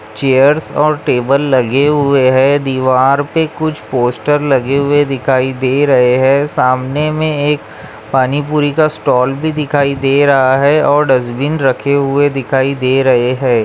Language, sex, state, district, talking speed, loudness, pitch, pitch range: Hindi, male, Maharashtra, Chandrapur, 160 wpm, -12 LUFS, 140 Hz, 130-145 Hz